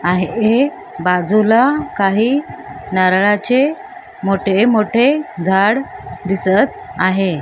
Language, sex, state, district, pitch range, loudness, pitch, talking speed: Marathi, female, Maharashtra, Mumbai Suburban, 190-260 Hz, -15 LUFS, 205 Hz, 75 wpm